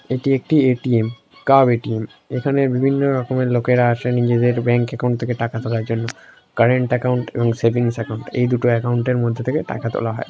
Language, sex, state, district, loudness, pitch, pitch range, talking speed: Bengali, male, West Bengal, North 24 Parganas, -19 LUFS, 120 Hz, 115-130 Hz, 185 wpm